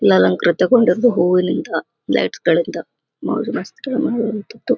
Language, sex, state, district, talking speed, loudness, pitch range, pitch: Kannada, female, Karnataka, Gulbarga, 50 wpm, -18 LUFS, 175-245 Hz, 220 Hz